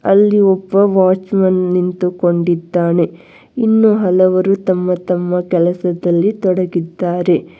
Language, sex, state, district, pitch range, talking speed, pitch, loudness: Kannada, female, Karnataka, Bangalore, 175-195 Hz, 85 wpm, 180 Hz, -14 LUFS